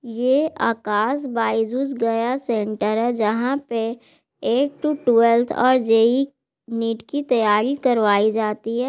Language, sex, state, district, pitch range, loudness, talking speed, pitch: Hindi, female, Bihar, Gaya, 225-260 Hz, -20 LUFS, 135 wpm, 230 Hz